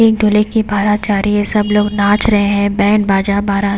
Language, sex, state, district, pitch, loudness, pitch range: Hindi, female, Haryana, Jhajjar, 205 Hz, -13 LUFS, 200-210 Hz